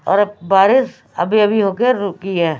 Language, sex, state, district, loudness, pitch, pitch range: Hindi, female, Chhattisgarh, Raipur, -15 LUFS, 200 Hz, 190-210 Hz